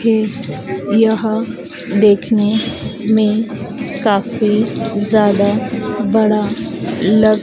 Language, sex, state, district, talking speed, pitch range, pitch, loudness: Hindi, female, Madhya Pradesh, Dhar, 65 wpm, 210-225 Hz, 215 Hz, -16 LUFS